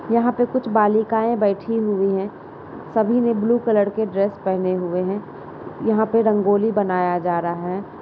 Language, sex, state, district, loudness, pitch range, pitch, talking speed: Hindi, female, Uttar Pradesh, Hamirpur, -20 LUFS, 195-225 Hz, 210 Hz, 170 wpm